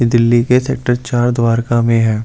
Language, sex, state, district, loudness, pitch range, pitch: Hindi, male, Delhi, New Delhi, -14 LUFS, 115-120 Hz, 120 Hz